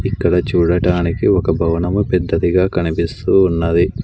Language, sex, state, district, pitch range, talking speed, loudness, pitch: Telugu, male, Andhra Pradesh, Sri Satya Sai, 85-95 Hz, 105 wpm, -16 LUFS, 90 Hz